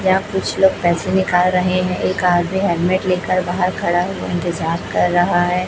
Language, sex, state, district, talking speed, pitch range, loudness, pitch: Hindi, female, Chhattisgarh, Raipur, 190 wpm, 175-185 Hz, -17 LUFS, 180 Hz